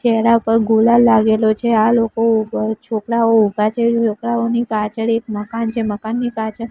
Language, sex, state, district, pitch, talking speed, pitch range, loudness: Gujarati, female, Gujarat, Gandhinagar, 225 Hz, 160 wpm, 220-230 Hz, -16 LUFS